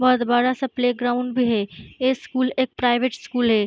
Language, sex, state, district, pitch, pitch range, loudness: Hindi, female, Uttar Pradesh, Gorakhpur, 250 Hz, 240-255 Hz, -22 LUFS